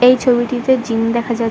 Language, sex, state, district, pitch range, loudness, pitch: Bengali, male, West Bengal, Kolkata, 230-250 Hz, -16 LUFS, 240 Hz